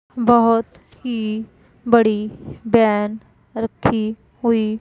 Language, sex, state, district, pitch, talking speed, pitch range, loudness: Hindi, female, Punjab, Pathankot, 225 Hz, 75 wpm, 215-235 Hz, -19 LUFS